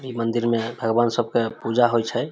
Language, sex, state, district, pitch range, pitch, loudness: Maithili, male, Bihar, Samastipur, 115-120 Hz, 120 Hz, -22 LUFS